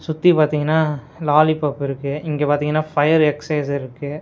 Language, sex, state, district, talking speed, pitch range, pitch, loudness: Tamil, male, Tamil Nadu, Nilgiris, 130 wpm, 145-155 Hz, 150 Hz, -19 LUFS